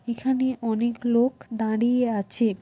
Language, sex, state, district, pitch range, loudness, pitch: Bengali, female, West Bengal, Dakshin Dinajpur, 225-245 Hz, -24 LUFS, 235 Hz